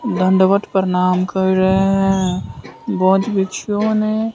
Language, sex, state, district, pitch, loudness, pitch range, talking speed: Hindi, male, Bihar, West Champaran, 190 Hz, -16 LUFS, 185-200 Hz, 110 wpm